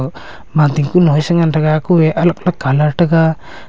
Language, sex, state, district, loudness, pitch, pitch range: Wancho, male, Arunachal Pradesh, Longding, -13 LUFS, 160 Hz, 150-170 Hz